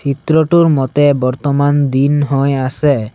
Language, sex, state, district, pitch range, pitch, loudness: Assamese, male, Assam, Sonitpur, 135-145 Hz, 140 Hz, -13 LUFS